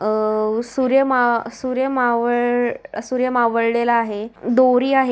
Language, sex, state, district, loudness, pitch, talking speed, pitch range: Marathi, female, Maharashtra, Sindhudurg, -18 LUFS, 240 Hz, 115 wpm, 230-255 Hz